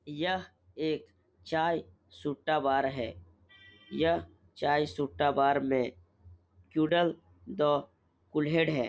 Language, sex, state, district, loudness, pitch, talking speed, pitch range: Hindi, male, Bihar, Supaul, -31 LUFS, 135 Hz, 100 wpm, 90-150 Hz